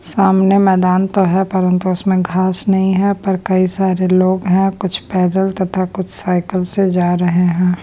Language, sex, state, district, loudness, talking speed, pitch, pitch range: Hindi, female, Bihar, Patna, -15 LUFS, 175 wpm, 185 Hz, 180-190 Hz